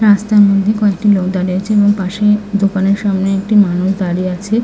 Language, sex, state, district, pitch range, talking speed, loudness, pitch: Bengali, female, West Bengal, North 24 Parganas, 190-210 Hz, 195 wpm, -13 LUFS, 200 Hz